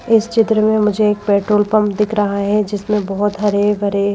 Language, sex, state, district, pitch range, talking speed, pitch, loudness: Hindi, female, Madhya Pradesh, Bhopal, 205-215 Hz, 215 wpm, 210 Hz, -15 LUFS